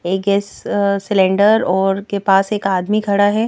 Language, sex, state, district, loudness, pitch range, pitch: Hindi, female, Madhya Pradesh, Bhopal, -16 LUFS, 195-205 Hz, 200 Hz